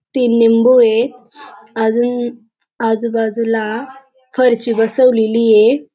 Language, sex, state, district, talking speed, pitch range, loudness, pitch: Marathi, female, Maharashtra, Dhule, 80 wpm, 225-250 Hz, -13 LUFS, 235 Hz